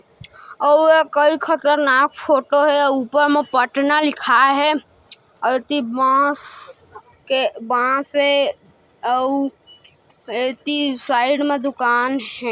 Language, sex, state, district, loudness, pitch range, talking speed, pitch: Hindi, female, Chhattisgarh, Kabirdham, -17 LUFS, 260-290 Hz, 105 wpm, 280 Hz